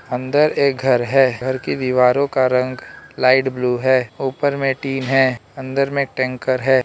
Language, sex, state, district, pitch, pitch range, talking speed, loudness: Hindi, male, Arunachal Pradesh, Lower Dibang Valley, 130 Hz, 130-135 Hz, 175 wpm, -18 LUFS